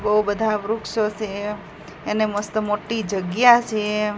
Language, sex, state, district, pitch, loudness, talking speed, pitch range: Gujarati, female, Gujarat, Gandhinagar, 210 Hz, -21 LUFS, 130 wpm, 210-220 Hz